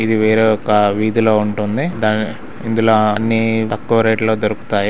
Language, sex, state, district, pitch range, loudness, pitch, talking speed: Telugu, male, Telangana, Karimnagar, 105-110 Hz, -15 LUFS, 110 Hz, 135 wpm